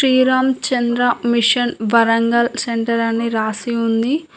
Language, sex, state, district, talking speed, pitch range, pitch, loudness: Telugu, female, Telangana, Mahabubabad, 110 wpm, 230-255 Hz, 235 Hz, -17 LUFS